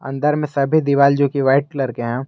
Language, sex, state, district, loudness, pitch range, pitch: Hindi, male, Jharkhand, Garhwa, -17 LUFS, 135-145 Hz, 140 Hz